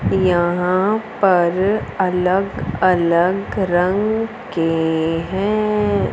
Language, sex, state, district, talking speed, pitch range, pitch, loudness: Hindi, female, Punjab, Fazilka, 70 wpm, 175-205 Hz, 185 Hz, -18 LUFS